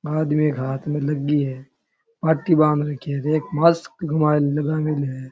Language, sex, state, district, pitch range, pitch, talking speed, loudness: Rajasthani, male, Rajasthan, Churu, 145-155 Hz, 150 Hz, 170 wpm, -21 LUFS